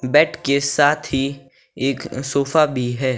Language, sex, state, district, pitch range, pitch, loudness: Hindi, male, Himachal Pradesh, Shimla, 130-150 Hz, 140 Hz, -19 LUFS